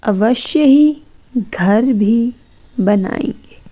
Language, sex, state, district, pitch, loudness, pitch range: Hindi, female, Chandigarh, Chandigarh, 235 Hz, -15 LUFS, 210-255 Hz